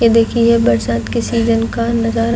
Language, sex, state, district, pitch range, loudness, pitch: Hindi, female, Chhattisgarh, Raigarh, 225-230 Hz, -15 LUFS, 230 Hz